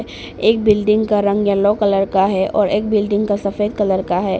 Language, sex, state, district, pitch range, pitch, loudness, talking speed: Hindi, female, Arunachal Pradesh, Papum Pare, 195-210 Hz, 205 Hz, -16 LUFS, 220 wpm